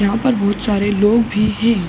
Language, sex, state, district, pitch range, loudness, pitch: Hindi, male, Uttar Pradesh, Ghazipur, 205-230 Hz, -16 LUFS, 210 Hz